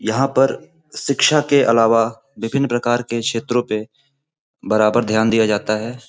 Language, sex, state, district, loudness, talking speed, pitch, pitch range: Hindi, male, Uttar Pradesh, Gorakhpur, -17 LUFS, 150 wpm, 120 Hz, 110-140 Hz